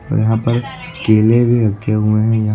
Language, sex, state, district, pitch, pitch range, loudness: Hindi, male, Uttar Pradesh, Lucknow, 110 Hz, 110-120 Hz, -15 LUFS